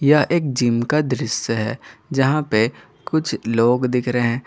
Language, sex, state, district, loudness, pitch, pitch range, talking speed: Hindi, male, Jharkhand, Garhwa, -20 LUFS, 125 Hz, 115-150 Hz, 160 wpm